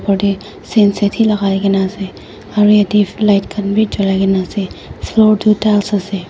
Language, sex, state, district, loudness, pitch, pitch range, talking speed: Nagamese, female, Nagaland, Dimapur, -14 LUFS, 205 Hz, 195-210 Hz, 170 wpm